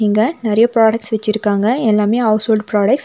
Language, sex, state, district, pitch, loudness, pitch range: Tamil, female, Tamil Nadu, Nilgiris, 220 Hz, -15 LUFS, 215-230 Hz